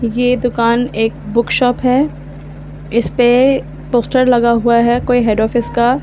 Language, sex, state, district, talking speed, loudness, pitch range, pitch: Hindi, female, Delhi, New Delhi, 160 wpm, -14 LUFS, 230-245 Hz, 235 Hz